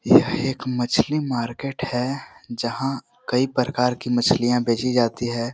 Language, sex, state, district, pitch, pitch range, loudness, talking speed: Hindi, male, Chhattisgarh, Korba, 125 Hz, 120-130 Hz, -22 LUFS, 140 wpm